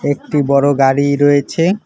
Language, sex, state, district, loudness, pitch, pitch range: Bengali, male, West Bengal, Alipurduar, -13 LUFS, 145 Hz, 140-145 Hz